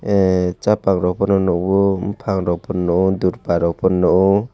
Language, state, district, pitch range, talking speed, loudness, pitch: Kokborok, Tripura, West Tripura, 90-100 Hz, 130 wpm, -17 LUFS, 95 Hz